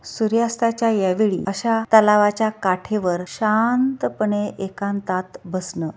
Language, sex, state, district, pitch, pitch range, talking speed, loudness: Marathi, female, Maharashtra, Dhule, 210 Hz, 185-225 Hz, 90 wpm, -20 LUFS